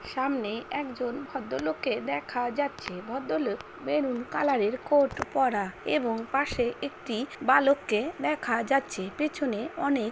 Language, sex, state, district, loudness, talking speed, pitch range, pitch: Bengali, female, West Bengal, Paschim Medinipur, -29 LUFS, 105 wpm, 225-280 Hz, 255 Hz